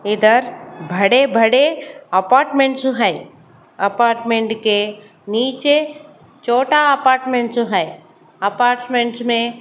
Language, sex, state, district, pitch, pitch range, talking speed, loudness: Hindi, female, Haryana, Charkhi Dadri, 240 Hz, 220-270 Hz, 80 wpm, -16 LUFS